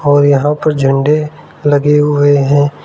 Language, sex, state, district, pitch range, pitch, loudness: Hindi, male, Arunachal Pradesh, Lower Dibang Valley, 145-150 Hz, 145 Hz, -11 LUFS